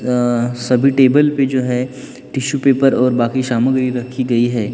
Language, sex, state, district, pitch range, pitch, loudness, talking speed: Hindi, male, Maharashtra, Gondia, 120-135 Hz, 125 Hz, -15 LUFS, 175 wpm